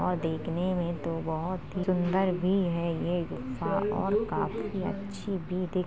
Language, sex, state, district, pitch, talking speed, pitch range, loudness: Hindi, male, Uttar Pradesh, Jalaun, 180 Hz, 215 wpm, 170-195 Hz, -30 LUFS